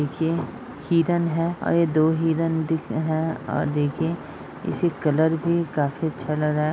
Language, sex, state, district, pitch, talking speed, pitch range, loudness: Hindi, female, Uttar Pradesh, Ghazipur, 160 Hz, 150 wpm, 150-165 Hz, -23 LUFS